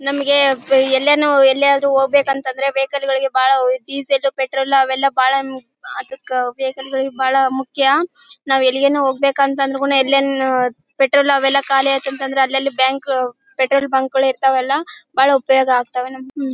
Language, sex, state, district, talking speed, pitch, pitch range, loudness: Kannada, female, Karnataka, Bellary, 140 wpm, 270 Hz, 265-275 Hz, -16 LUFS